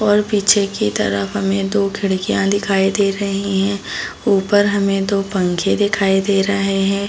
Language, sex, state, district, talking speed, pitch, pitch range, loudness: Hindi, female, Bihar, Saran, 160 wpm, 195 Hz, 195-200 Hz, -17 LUFS